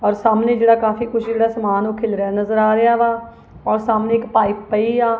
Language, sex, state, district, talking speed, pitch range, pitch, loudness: Punjabi, female, Punjab, Kapurthala, 220 wpm, 215-230 Hz, 225 Hz, -17 LUFS